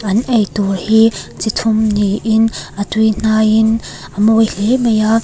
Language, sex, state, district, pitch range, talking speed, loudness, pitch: Mizo, female, Mizoram, Aizawl, 205-225 Hz, 150 wpm, -14 LUFS, 220 Hz